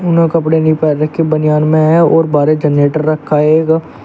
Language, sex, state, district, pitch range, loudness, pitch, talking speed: Hindi, male, Uttar Pradesh, Shamli, 150-160 Hz, -11 LUFS, 155 Hz, 220 wpm